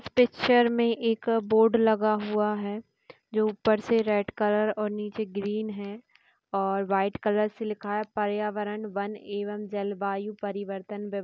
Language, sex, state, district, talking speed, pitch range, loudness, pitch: Hindi, female, Bihar, Jamui, 170 wpm, 205-220 Hz, -27 LUFS, 210 Hz